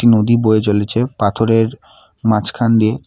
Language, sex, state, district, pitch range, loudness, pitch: Bengali, male, West Bengal, Alipurduar, 105-115 Hz, -15 LUFS, 110 Hz